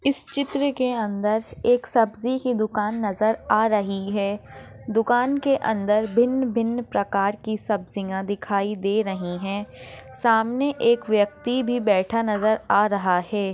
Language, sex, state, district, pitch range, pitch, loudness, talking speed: Hindi, female, Maharashtra, Sindhudurg, 200-240 Hz, 215 Hz, -23 LUFS, 140 wpm